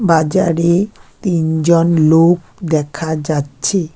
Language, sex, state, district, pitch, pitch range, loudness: Bengali, female, West Bengal, Alipurduar, 165 Hz, 155-170 Hz, -15 LUFS